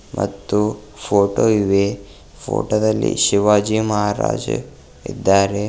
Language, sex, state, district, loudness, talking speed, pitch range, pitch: Kannada, male, Karnataka, Bidar, -18 LUFS, 85 wpm, 100-105 Hz, 105 Hz